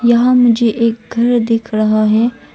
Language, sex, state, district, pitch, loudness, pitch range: Hindi, female, Arunachal Pradesh, Longding, 230 Hz, -13 LUFS, 225-235 Hz